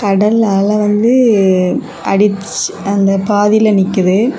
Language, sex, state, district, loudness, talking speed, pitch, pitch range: Tamil, female, Tamil Nadu, Kanyakumari, -12 LUFS, 95 wpm, 205 Hz, 195-210 Hz